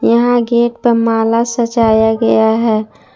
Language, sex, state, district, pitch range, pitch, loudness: Hindi, female, Jharkhand, Palamu, 225-235 Hz, 230 Hz, -13 LUFS